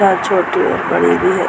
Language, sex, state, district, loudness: Hindi, female, Uttar Pradesh, Muzaffarnagar, -14 LUFS